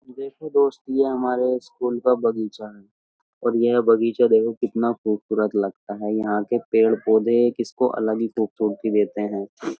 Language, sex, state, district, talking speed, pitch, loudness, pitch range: Hindi, male, Uttar Pradesh, Jyotiba Phule Nagar, 155 wpm, 115 Hz, -22 LUFS, 105-125 Hz